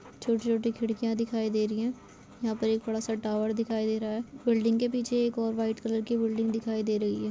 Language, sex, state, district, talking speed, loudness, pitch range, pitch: Hindi, female, Chhattisgarh, Sarguja, 230 wpm, -30 LUFS, 220-230 Hz, 225 Hz